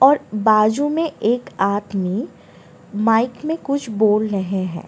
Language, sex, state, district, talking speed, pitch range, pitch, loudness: Hindi, female, Delhi, New Delhi, 135 wpm, 200-270 Hz, 215 Hz, -19 LUFS